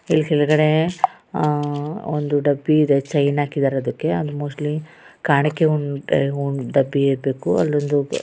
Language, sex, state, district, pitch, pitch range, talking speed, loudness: Kannada, female, Karnataka, Raichur, 145 Hz, 140-155 Hz, 130 wpm, -20 LUFS